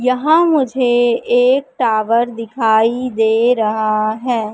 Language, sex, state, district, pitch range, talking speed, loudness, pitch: Hindi, female, Madhya Pradesh, Katni, 220-255 Hz, 105 wpm, -15 LUFS, 240 Hz